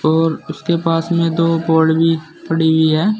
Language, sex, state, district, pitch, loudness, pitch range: Hindi, male, Uttar Pradesh, Saharanpur, 165 Hz, -16 LUFS, 160-165 Hz